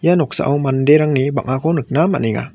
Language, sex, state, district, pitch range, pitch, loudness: Garo, male, Meghalaya, West Garo Hills, 135-160 Hz, 145 Hz, -16 LUFS